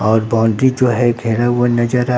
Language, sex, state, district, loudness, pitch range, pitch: Hindi, male, Bihar, Katihar, -15 LUFS, 115-125 Hz, 120 Hz